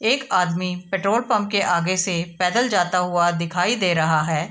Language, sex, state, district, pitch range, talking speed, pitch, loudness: Hindi, female, Bihar, East Champaran, 175-200 Hz, 185 wpm, 180 Hz, -20 LUFS